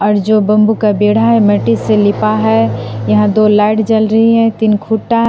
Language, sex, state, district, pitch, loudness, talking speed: Hindi, female, Assam, Sonitpur, 210 Hz, -11 LUFS, 195 wpm